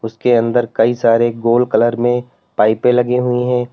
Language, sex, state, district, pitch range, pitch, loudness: Hindi, male, Uttar Pradesh, Lalitpur, 115-125 Hz, 120 Hz, -15 LUFS